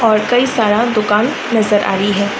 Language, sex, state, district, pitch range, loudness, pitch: Hindi, female, Uttar Pradesh, Varanasi, 205-230 Hz, -14 LUFS, 215 Hz